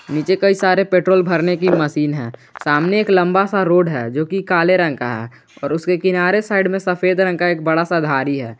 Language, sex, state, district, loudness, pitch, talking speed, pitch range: Hindi, male, Jharkhand, Garhwa, -16 LUFS, 175 Hz, 215 wpm, 150-185 Hz